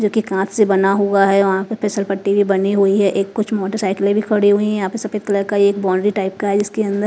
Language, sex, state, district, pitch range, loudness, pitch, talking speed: Hindi, female, Punjab, Kapurthala, 195-210 Hz, -17 LUFS, 200 Hz, 295 wpm